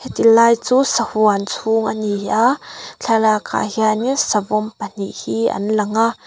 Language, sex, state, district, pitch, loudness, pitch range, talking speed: Mizo, female, Mizoram, Aizawl, 215 Hz, -17 LUFS, 210-230 Hz, 155 wpm